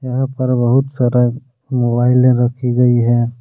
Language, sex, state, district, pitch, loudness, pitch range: Hindi, male, Jharkhand, Deoghar, 125 Hz, -15 LUFS, 120-130 Hz